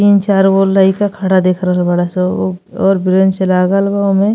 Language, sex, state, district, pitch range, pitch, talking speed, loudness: Bhojpuri, female, Uttar Pradesh, Ghazipur, 185-195 Hz, 190 Hz, 180 wpm, -13 LUFS